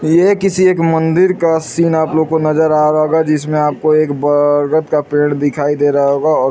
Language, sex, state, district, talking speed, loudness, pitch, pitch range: Hindi, male, Chhattisgarh, Raigarh, 220 wpm, -13 LUFS, 155 Hz, 145-160 Hz